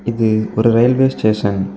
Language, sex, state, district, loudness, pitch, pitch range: Tamil, male, Tamil Nadu, Kanyakumari, -15 LUFS, 110 Hz, 105-115 Hz